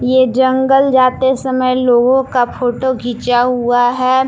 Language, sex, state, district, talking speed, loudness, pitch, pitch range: Hindi, female, Jharkhand, Palamu, 140 wpm, -13 LUFS, 255 Hz, 245-260 Hz